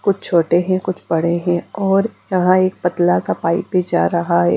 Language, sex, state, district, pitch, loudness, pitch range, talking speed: Hindi, female, Punjab, Kapurthala, 175 Hz, -17 LUFS, 170-185 Hz, 210 wpm